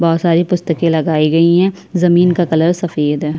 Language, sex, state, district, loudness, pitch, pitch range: Hindi, female, Chhattisgarh, Kabirdham, -13 LUFS, 170 Hz, 160-180 Hz